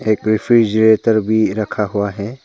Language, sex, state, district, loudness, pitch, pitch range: Hindi, male, Arunachal Pradesh, Papum Pare, -15 LUFS, 110 Hz, 105-110 Hz